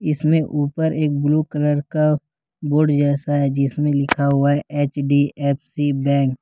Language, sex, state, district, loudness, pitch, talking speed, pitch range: Hindi, male, Jharkhand, Ranchi, -19 LUFS, 145 Hz, 175 wpm, 140-150 Hz